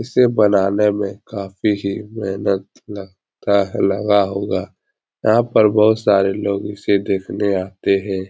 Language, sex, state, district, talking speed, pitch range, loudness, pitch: Hindi, male, Bihar, Jahanabad, 145 wpm, 95-105 Hz, -18 LUFS, 100 Hz